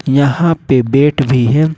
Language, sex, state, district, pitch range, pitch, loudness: Hindi, male, Jharkhand, Ranchi, 130-155 Hz, 140 Hz, -12 LUFS